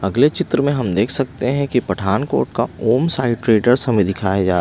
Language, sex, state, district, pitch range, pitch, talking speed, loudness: Hindi, male, Punjab, Pathankot, 95-135 Hz, 120 Hz, 210 wpm, -17 LUFS